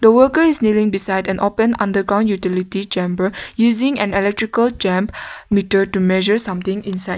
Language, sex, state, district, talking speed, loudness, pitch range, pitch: English, female, Nagaland, Kohima, 150 wpm, -17 LUFS, 190-220 Hz, 200 Hz